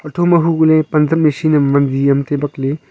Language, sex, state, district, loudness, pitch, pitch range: Wancho, male, Arunachal Pradesh, Longding, -14 LUFS, 150 Hz, 140-160 Hz